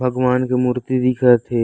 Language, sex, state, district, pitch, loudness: Chhattisgarhi, male, Chhattisgarh, Raigarh, 125 Hz, -17 LUFS